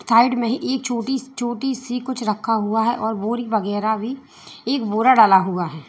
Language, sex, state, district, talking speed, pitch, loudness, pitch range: Hindi, female, Uttar Pradesh, Lalitpur, 205 wpm, 235 Hz, -20 LUFS, 220-255 Hz